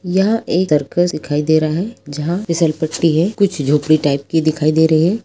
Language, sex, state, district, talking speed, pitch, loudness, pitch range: Hindi, female, Chhattisgarh, Rajnandgaon, 205 wpm, 160 Hz, -16 LUFS, 155-175 Hz